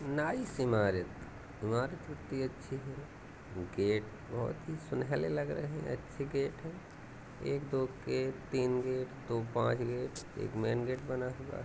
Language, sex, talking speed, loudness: Awadhi, female, 155 wpm, -37 LUFS